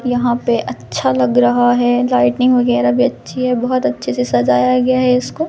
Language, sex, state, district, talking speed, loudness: Hindi, female, Madhya Pradesh, Katni, 195 wpm, -15 LUFS